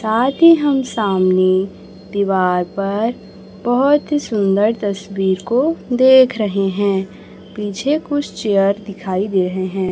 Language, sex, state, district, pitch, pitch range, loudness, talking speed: Hindi, male, Chhattisgarh, Raipur, 205 Hz, 195-255 Hz, -16 LUFS, 125 wpm